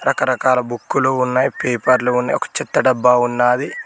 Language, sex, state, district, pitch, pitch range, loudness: Telugu, male, Telangana, Mahabubabad, 125 Hz, 125-130 Hz, -17 LUFS